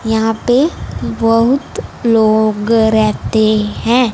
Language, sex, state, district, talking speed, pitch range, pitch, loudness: Hindi, female, Punjab, Fazilka, 85 wpm, 215-235 Hz, 225 Hz, -13 LUFS